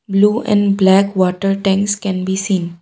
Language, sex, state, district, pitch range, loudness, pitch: English, female, Assam, Kamrup Metropolitan, 190-200 Hz, -15 LUFS, 195 Hz